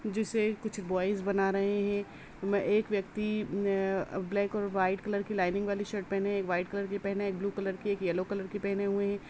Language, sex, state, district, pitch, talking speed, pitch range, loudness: Hindi, female, Uttar Pradesh, Budaun, 200 Hz, 220 wpm, 195-205 Hz, -32 LUFS